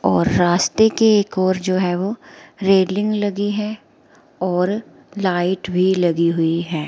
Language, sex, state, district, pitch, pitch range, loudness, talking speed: Hindi, female, Himachal Pradesh, Shimla, 185 Hz, 180-205 Hz, -18 LUFS, 150 wpm